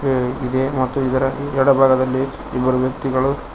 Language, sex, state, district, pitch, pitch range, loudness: Kannada, male, Karnataka, Koppal, 130 Hz, 130-135 Hz, -18 LUFS